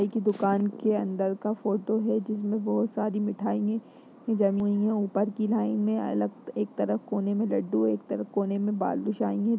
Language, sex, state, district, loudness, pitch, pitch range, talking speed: Hindi, female, Bihar, Darbhanga, -28 LUFS, 205 Hz, 195-215 Hz, 190 wpm